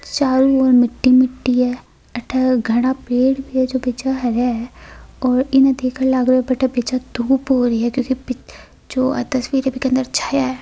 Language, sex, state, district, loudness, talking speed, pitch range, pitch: Hindi, female, Rajasthan, Nagaur, -17 LUFS, 160 wpm, 250-265 Hz, 255 Hz